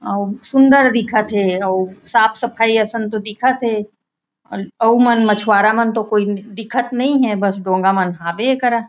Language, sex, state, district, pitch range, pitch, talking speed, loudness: Chhattisgarhi, female, Chhattisgarh, Raigarh, 200-235 Hz, 220 Hz, 175 wpm, -16 LUFS